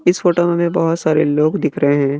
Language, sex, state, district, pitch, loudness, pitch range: Hindi, male, Bihar, West Champaran, 165 Hz, -16 LUFS, 150-175 Hz